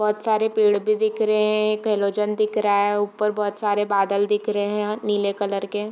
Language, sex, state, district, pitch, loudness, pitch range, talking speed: Hindi, female, Bihar, Darbhanga, 210 Hz, -22 LUFS, 205-215 Hz, 225 wpm